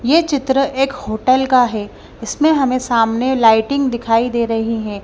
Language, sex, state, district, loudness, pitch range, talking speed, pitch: Hindi, female, Punjab, Kapurthala, -16 LUFS, 225-270 Hz, 165 wpm, 245 Hz